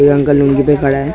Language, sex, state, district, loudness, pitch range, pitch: Hindi, male, Maharashtra, Mumbai Suburban, -11 LUFS, 140-145 Hz, 140 Hz